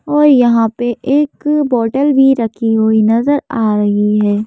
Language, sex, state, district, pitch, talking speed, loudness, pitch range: Hindi, female, Madhya Pradesh, Bhopal, 235 Hz, 160 wpm, -13 LUFS, 220-285 Hz